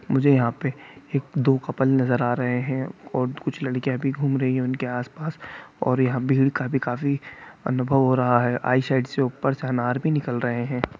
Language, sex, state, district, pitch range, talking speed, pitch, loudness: Hindi, male, Bihar, Gopalganj, 125-135 Hz, 215 wpm, 130 Hz, -23 LUFS